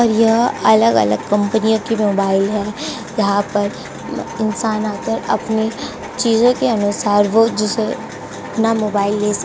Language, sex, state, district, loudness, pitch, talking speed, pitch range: Hindi, female, Uttar Pradesh, Jyotiba Phule Nagar, -17 LUFS, 215 Hz, 145 wpm, 205-225 Hz